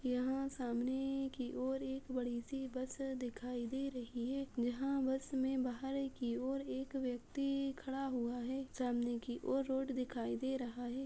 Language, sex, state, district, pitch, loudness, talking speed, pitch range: Hindi, female, Uttar Pradesh, Muzaffarnagar, 260 Hz, -40 LUFS, 170 wpm, 245-270 Hz